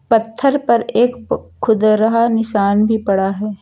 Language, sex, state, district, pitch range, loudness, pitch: Hindi, female, Uttar Pradesh, Lucknow, 210-230 Hz, -15 LUFS, 220 Hz